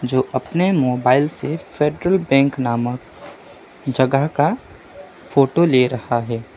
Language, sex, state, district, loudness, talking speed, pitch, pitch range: Hindi, male, West Bengal, Alipurduar, -18 LUFS, 120 wpm, 135 Hz, 125-165 Hz